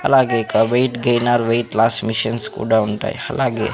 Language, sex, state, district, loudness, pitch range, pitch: Telugu, male, Andhra Pradesh, Sri Satya Sai, -17 LUFS, 110-120 Hz, 115 Hz